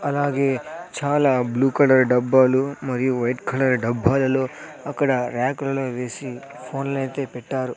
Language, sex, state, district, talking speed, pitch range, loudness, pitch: Telugu, male, Andhra Pradesh, Sri Satya Sai, 115 wpm, 125-140 Hz, -21 LUFS, 130 Hz